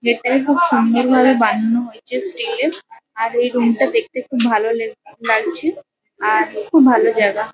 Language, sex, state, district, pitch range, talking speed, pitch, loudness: Bengali, female, West Bengal, Kolkata, 225-280 Hz, 165 wpm, 240 Hz, -16 LUFS